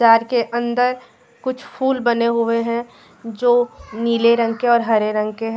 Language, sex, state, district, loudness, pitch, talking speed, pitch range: Hindi, female, Jharkhand, Garhwa, -18 LUFS, 235 Hz, 185 wpm, 230-245 Hz